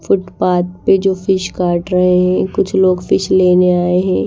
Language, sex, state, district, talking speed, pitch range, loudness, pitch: Hindi, female, Bihar, Patna, 180 wpm, 180-190 Hz, -14 LUFS, 180 Hz